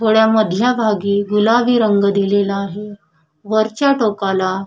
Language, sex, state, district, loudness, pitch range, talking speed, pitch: Marathi, female, Maharashtra, Chandrapur, -16 LUFS, 200-220 Hz, 115 wpm, 210 Hz